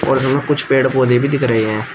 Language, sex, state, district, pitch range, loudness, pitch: Hindi, male, Uttar Pradesh, Shamli, 120-135 Hz, -15 LUFS, 130 Hz